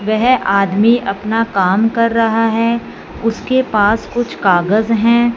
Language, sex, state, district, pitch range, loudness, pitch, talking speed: Hindi, female, Punjab, Fazilka, 205-235 Hz, -14 LUFS, 225 Hz, 135 wpm